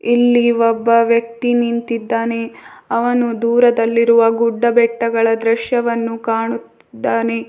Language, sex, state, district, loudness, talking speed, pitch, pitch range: Kannada, female, Karnataka, Bidar, -15 LUFS, 90 wpm, 230 Hz, 230-235 Hz